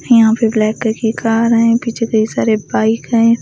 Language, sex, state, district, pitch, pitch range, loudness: Hindi, female, Delhi, New Delhi, 225 Hz, 220-230 Hz, -14 LUFS